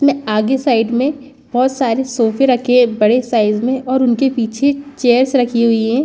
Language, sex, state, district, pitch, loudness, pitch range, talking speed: Hindi, female, Chhattisgarh, Balrampur, 250 Hz, -15 LUFS, 230-265 Hz, 200 wpm